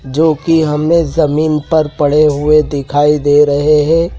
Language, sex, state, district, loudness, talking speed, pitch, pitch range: Hindi, male, Madhya Pradesh, Dhar, -12 LUFS, 145 wpm, 150 Hz, 145-160 Hz